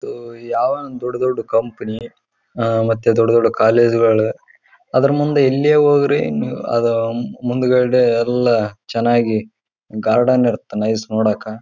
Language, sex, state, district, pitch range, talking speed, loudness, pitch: Kannada, male, Karnataka, Raichur, 110-125 Hz, 55 wpm, -17 LUFS, 115 Hz